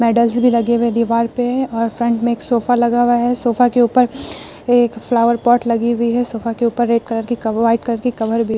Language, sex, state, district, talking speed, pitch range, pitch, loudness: Hindi, female, Bihar, Vaishali, 250 wpm, 230-245 Hz, 235 Hz, -16 LUFS